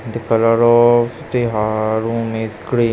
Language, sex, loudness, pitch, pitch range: English, male, -16 LUFS, 115 Hz, 110-120 Hz